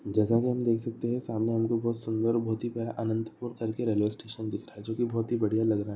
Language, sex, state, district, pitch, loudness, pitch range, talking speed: Hindi, male, Andhra Pradesh, Anantapur, 115 Hz, -30 LUFS, 110-115 Hz, 240 wpm